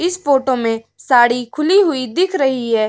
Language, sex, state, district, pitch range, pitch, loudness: Hindi, female, Uttar Pradesh, Hamirpur, 240-335 Hz, 260 Hz, -16 LUFS